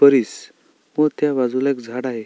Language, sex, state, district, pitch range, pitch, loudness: Marathi, male, Maharashtra, Sindhudurg, 125-140 Hz, 130 Hz, -20 LUFS